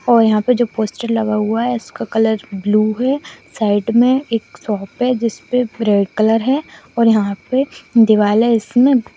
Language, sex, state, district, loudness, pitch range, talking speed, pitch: Hindi, female, West Bengal, Dakshin Dinajpur, -16 LUFS, 215-245 Hz, 175 wpm, 225 Hz